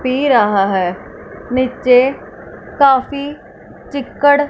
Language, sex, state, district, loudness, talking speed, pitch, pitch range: Hindi, female, Punjab, Fazilka, -15 LUFS, 80 wpm, 260 Hz, 250-280 Hz